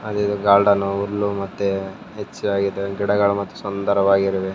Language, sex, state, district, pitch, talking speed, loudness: Kannada, male, Karnataka, Raichur, 100 Hz, 120 wpm, -20 LUFS